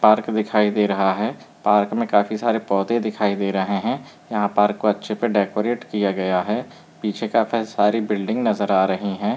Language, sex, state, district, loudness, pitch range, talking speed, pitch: Hindi, female, Bihar, Muzaffarpur, -21 LUFS, 100-110 Hz, 200 wpm, 105 Hz